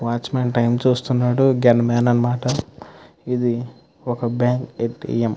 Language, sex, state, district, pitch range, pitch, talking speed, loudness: Telugu, male, Andhra Pradesh, Krishna, 120-125 Hz, 120 Hz, 155 wpm, -20 LUFS